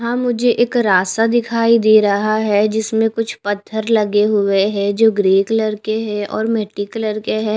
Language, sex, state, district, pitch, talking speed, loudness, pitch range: Hindi, female, Haryana, Rohtak, 215 Hz, 190 wpm, -16 LUFS, 205-225 Hz